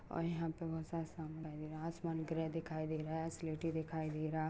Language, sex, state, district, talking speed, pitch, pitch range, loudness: Hindi, female, Goa, North and South Goa, 200 wpm, 160 Hz, 155-165 Hz, -42 LUFS